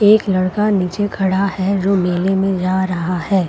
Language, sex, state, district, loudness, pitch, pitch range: Hindi, female, Bihar, Gaya, -17 LUFS, 190 Hz, 185-195 Hz